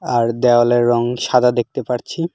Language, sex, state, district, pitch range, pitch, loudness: Bengali, male, West Bengal, Alipurduar, 120-125 Hz, 120 Hz, -16 LUFS